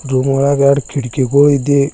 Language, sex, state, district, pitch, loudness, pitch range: Kannada, male, Karnataka, Bidar, 140 Hz, -13 LUFS, 135-140 Hz